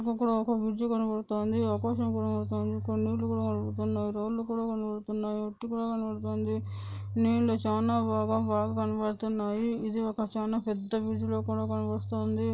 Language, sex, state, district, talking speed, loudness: Telugu, female, Andhra Pradesh, Anantapur, 140 wpm, -31 LUFS